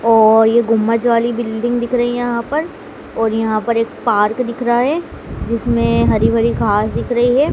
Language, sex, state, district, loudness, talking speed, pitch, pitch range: Hindi, female, Madhya Pradesh, Dhar, -15 LUFS, 190 wpm, 230 Hz, 220-240 Hz